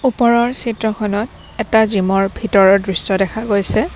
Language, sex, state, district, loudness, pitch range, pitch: Assamese, female, Assam, Kamrup Metropolitan, -15 LUFS, 195-230 Hz, 215 Hz